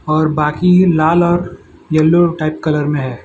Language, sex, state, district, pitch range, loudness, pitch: Hindi, male, Gujarat, Valsad, 155-175 Hz, -13 LUFS, 155 Hz